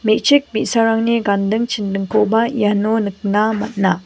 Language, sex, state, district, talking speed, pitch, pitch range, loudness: Garo, female, Meghalaya, West Garo Hills, 105 wpm, 215 Hz, 205-225 Hz, -17 LUFS